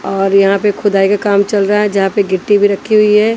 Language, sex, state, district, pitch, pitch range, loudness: Hindi, female, Haryana, Charkhi Dadri, 205 Hz, 195-210 Hz, -12 LUFS